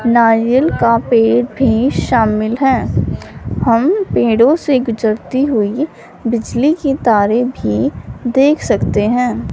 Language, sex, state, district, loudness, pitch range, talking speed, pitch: Hindi, female, Punjab, Fazilka, -14 LUFS, 230-270 Hz, 115 wpm, 240 Hz